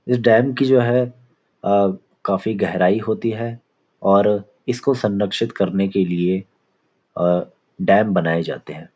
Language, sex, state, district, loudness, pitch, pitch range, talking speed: Hindi, male, Uttarakhand, Uttarkashi, -19 LUFS, 105 Hz, 95-120 Hz, 140 wpm